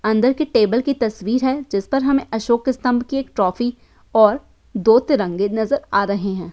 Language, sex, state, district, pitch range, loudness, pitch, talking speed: Hindi, female, Uttar Pradesh, Hamirpur, 210-265 Hz, -19 LUFS, 235 Hz, 195 wpm